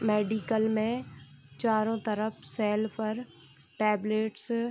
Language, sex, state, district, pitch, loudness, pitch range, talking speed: Hindi, female, Bihar, Gopalganj, 215 Hz, -30 LUFS, 210-225 Hz, 100 wpm